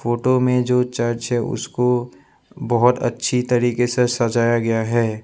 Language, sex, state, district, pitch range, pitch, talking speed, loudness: Hindi, male, Assam, Sonitpur, 120-125 Hz, 120 Hz, 150 wpm, -19 LUFS